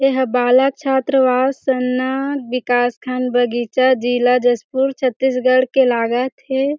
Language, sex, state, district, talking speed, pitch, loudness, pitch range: Chhattisgarhi, female, Chhattisgarh, Jashpur, 115 wpm, 255 Hz, -17 LUFS, 245-265 Hz